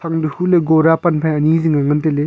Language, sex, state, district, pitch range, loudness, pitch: Wancho, male, Arunachal Pradesh, Longding, 155-165 Hz, -15 LUFS, 160 Hz